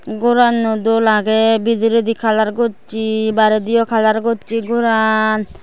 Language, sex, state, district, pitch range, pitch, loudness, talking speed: Chakma, female, Tripura, West Tripura, 220-230 Hz, 225 Hz, -15 LUFS, 130 wpm